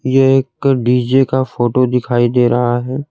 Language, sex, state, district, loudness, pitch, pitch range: Hindi, male, Bihar, Kaimur, -14 LUFS, 125 Hz, 120-135 Hz